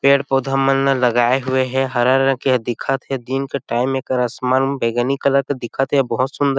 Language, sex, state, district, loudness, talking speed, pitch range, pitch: Chhattisgarhi, male, Chhattisgarh, Sarguja, -18 LUFS, 235 wpm, 125-135 Hz, 135 Hz